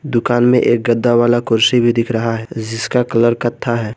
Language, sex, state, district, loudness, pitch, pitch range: Hindi, male, Jharkhand, Garhwa, -15 LUFS, 120 Hz, 115-120 Hz